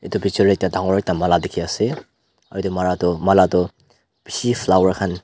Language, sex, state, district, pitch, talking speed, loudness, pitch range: Nagamese, male, Nagaland, Dimapur, 95 Hz, 205 wpm, -19 LUFS, 90-100 Hz